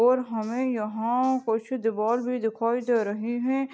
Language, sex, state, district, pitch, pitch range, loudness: Hindi, female, Chhattisgarh, Balrampur, 235 Hz, 225-255 Hz, -26 LUFS